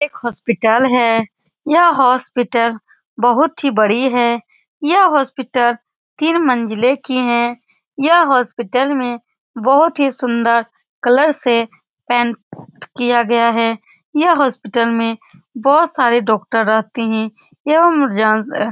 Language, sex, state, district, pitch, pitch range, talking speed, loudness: Hindi, female, Bihar, Supaul, 240 Hz, 230-280 Hz, 120 wpm, -15 LUFS